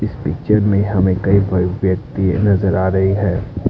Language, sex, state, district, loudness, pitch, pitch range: Hindi, male, Assam, Kamrup Metropolitan, -16 LUFS, 95 Hz, 95-100 Hz